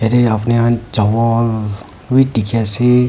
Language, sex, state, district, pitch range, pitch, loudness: Nagamese, female, Nagaland, Kohima, 110-120 Hz, 115 Hz, -15 LUFS